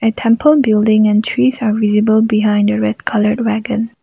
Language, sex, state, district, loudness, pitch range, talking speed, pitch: English, female, Nagaland, Kohima, -13 LUFS, 210-230 Hz, 180 wpm, 220 Hz